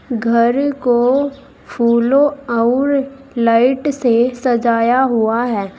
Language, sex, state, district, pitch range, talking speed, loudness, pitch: Hindi, female, Uttar Pradesh, Saharanpur, 235-270 Hz, 95 wpm, -15 LUFS, 245 Hz